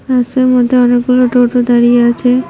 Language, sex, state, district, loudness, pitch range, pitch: Bengali, female, West Bengal, Cooch Behar, -10 LUFS, 245-250 Hz, 245 Hz